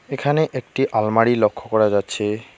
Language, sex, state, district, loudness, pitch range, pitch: Bengali, male, West Bengal, Alipurduar, -19 LUFS, 105-135 Hz, 115 Hz